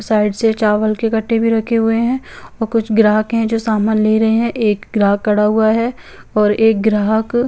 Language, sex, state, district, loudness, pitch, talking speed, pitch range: Hindi, female, Chandigarh, Chandigarh, -15 LUFS, 220 Hz, 210 wpm, 215-225 Hz